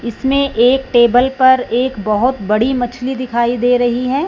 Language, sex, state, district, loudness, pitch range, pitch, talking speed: Hindi, female, Punjab, Fazilka, -14 LUFS, 240-260 Hz, 245 Hz, 170 wpm